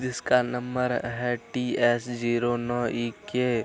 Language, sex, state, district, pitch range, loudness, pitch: Hindi, male, Bihar, Araria, 120-125 Hz, -27 LUFS, 120 Hz